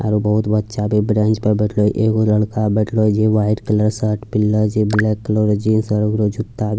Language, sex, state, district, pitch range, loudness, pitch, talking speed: Angika, male, Bihar, Bhagalpur, 105-110 Hz, -17 LUFS, 105 Hz, 220 wpm